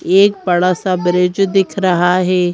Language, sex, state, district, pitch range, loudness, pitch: Hindi, female, Madhya Pradesh, Bhopal, 180-195 Hz, -14 LUFS, 185 Hz